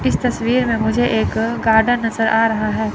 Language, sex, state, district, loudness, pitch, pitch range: Hindi, female, Chandigarh, Chandigarh, -17 LUFS, 225 Hz, 220-235 Hz